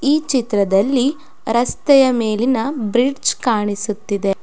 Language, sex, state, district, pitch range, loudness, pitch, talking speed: Kannada, female, Karnataka, Mysore, 210-270 Hz, -17 LUFS, 240 Hz, 80 wpm